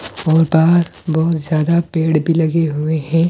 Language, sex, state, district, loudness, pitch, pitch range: Hindi, male, Delhi, New Delhi, -15 LUFS, 160 Hz, 155-165 Hz